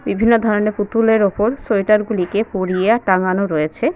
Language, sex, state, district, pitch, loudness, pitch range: Bengali, female, West Bengal, Paschim Medinipur, 210 Hz, -16 LUFS, 190-225 Hz